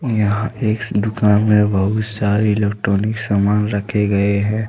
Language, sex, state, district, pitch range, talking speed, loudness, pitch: Hindi, male, Jharkhand, Deoghar, 100-110 Hz, 140 wpm, -17 LUFS, 105 Hz